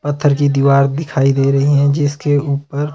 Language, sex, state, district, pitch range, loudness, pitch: Hindi, male, Himachal Pradesh, Shimla, 140-145 Hz, -14 LUFS, 145 Hz